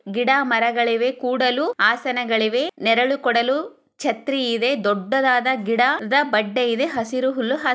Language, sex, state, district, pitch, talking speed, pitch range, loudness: Kannada, female, Karnataka, Chamarajanagar, 250 Hz, 110 wpm, 235-270 Hz, -20 LUFS